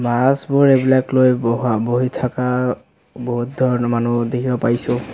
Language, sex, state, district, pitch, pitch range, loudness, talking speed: Assamese, male, Assam, Sonitpur, 125 Hz, 120-130 Hz, -17 LUFS, 130 wpm